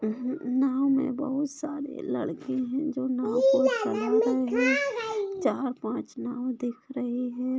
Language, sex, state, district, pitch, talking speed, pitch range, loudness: Hindi, female, Bihar, Begusarai, 260 Hz, 150 wpm, 245-275 Hz, -28 LUFS